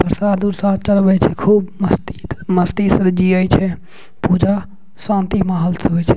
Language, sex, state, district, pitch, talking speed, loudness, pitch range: Maithili, male, Bihar, Madhepura, 190 Hz, 155 wpm, -16 LUFS, 180-200 Hz